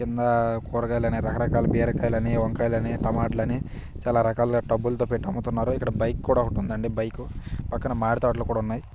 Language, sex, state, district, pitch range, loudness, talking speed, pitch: Telugu, male, Telangana, Nalgonda, 115-120 Hz, -25 LUFS, 155 wpm, 115 Hz